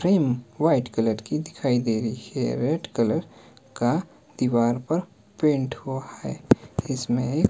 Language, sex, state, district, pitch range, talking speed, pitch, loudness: Hindi, male, Himachal Pradesh, Shimla, 120-150 Hz, 135 wpm, 130 Hz, -25 LUFS